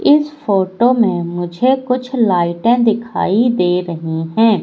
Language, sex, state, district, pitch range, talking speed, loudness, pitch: Hindi, female, Madhya Pradesh, Katni, 175-245 Hz, 130 wpm, -15 LUFS, 225 Hz